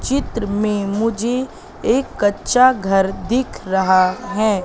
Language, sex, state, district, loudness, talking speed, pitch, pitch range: Hindi, female, Madhya Pradesh, Katni, -18 LUFS, 115 wpm, 215 Hz, 195-245 Hz